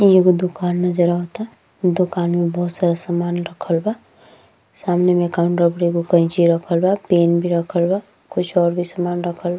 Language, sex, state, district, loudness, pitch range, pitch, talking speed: Bhojpuri, female, Uttar Pradesh, Ghazipur, -18 LUFS, 170-180 Hz, 175 Hz, 190 wpm